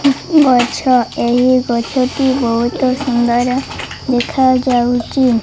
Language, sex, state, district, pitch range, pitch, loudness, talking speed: Odia, female, Odisha, Malkangiri, 240-260 Hz, 255 Hz, -14 LUFS, 90 wpm